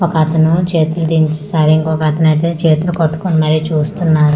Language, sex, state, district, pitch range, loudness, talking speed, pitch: Telugu, female, Andhra Pradesh, Manyam, 155-165 Hz, -13 LUFS, 125 wpm, 160 Hz